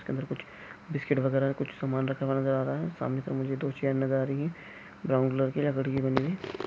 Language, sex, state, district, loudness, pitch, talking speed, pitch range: Hindi, male, Chhattisgarh, Jashpur, -30 LUFS, 135 Hz, 245 wpm, 135-145 Hz